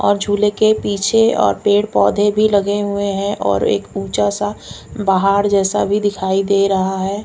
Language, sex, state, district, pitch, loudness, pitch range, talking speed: Hindi, female, Odisha, Khordha, 200 Hz, -16 LUFS, 195-205 Hz, 180 wpm